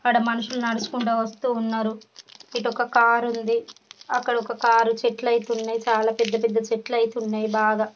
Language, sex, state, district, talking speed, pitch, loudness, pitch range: Telugu, female, Andhra Pradesh, Srikakulam, 145 wpm, 230 Hz, -23 LUFS, 225-240 Hz